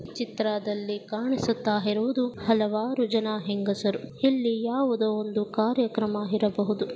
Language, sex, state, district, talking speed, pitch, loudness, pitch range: Kannada, female, Karnataka, Dakshina Kannada, 110 wpm, 215 Hz, -27 LUFS, 210-235 Hz